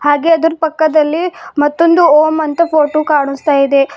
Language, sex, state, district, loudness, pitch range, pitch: Kannada, female, Karnataka, Bidar, -12 LUFS, 290-325 Hz, 310 Hz